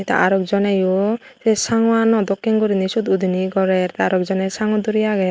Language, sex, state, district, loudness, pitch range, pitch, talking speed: Chakma, female, Tripura, West Tripura, -18 LUFS, 190-220 Hz, 200 Hz, 190 wpm